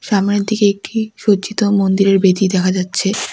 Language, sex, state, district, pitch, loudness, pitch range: Bengali, female, West Bengal, Alipurduar, 200 Hz, -15 LUFS, 195-205 Hz